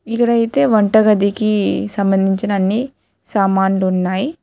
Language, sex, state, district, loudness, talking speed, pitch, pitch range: Telugu, female, Telangana, Hyderabad, -15 LUFS, 80 wpm, 210 Hz, 195-230 Hz